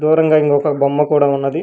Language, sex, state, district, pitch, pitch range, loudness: Telugu, male, Telangana, Hyderabad, 150 Hz, 140-150 Hz, -14 LUFS